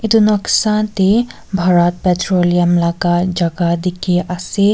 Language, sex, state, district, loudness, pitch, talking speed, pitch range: Nagamese, female, Nagaland, Kohima, -15 LUFS, 180 Hz, 115 wpm, 175-200 Hz